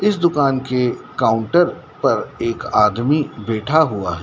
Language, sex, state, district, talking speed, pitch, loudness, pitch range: Hindi, male, Madhya Pradesh, Dhar, 140 wpm, 125 Hz, -18 LUFS, 110-155 Hz